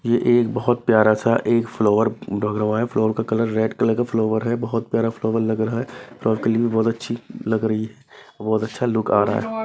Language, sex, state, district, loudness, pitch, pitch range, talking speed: Hindi, male, Bihar, Patna, -21 LUFS, 115 Hz, 110-115 Hz, 235 wpm